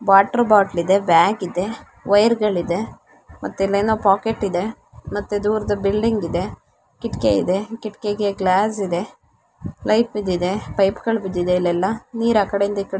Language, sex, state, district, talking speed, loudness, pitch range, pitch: Kannada, female, Karnataka, Chamarajanagar, 125 wpm, -19 LUFS, 190-215 Hz, 200 Hz